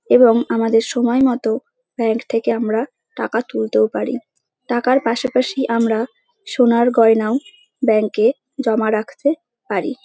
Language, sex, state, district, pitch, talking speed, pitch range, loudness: Bengali, female, West Bengal, Kolkata, 240 Hz, 125 wpm, 225-265 Hz, -18 LUFS